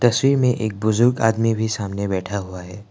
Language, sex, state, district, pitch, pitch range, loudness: Hindi, male, Assam, Kamrup Metropolitan, 110 Hz, 100-115 Hz, -20 LUFS